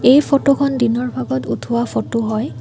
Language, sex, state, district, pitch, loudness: Assamese, female, Assam, Kamrup Metropolitan, 230 Hz, -17 LUFS